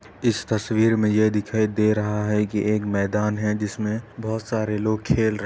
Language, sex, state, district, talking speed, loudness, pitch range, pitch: Hindi, male, Uttar Pradesh, Etah, 210 wpm, -23 LUFS, 105-110 Hz, 105 Hz